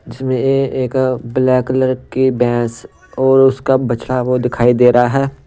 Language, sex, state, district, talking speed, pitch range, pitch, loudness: Hindi, male, Punjab, Pathankot, 155 wpm, 125-130 Hz, 130 Hz, -14 LUFS